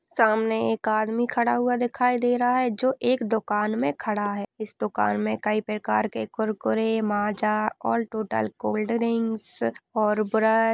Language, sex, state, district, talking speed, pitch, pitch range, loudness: Hindi, female, Maharashtra, Solapur, 160 wpm, 220 Hz, 210-235 Hz, -25 LUFS